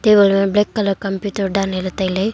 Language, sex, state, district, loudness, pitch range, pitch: Wancho, female, Arunachal Pradesh, Longding, -17 LUFS, 195-205 Hz, 195 Hz